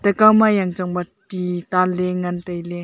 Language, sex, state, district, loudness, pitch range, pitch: Wancho, female, Arunachal Pradesh, Longding, -19 LUFS, 180-190 Hz, 180 Hz